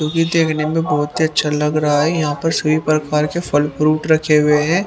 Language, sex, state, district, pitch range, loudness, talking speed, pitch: Hindi, male, Haryana, Rohtak, 150-160 Hz, -16 LUFS, 235 wpm, 155 Hz